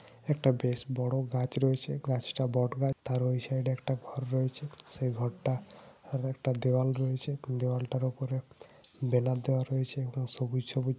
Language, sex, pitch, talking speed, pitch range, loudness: Bengali, male, 130 Hz, 180 wpm, 125-135 Hz, -32 LUFS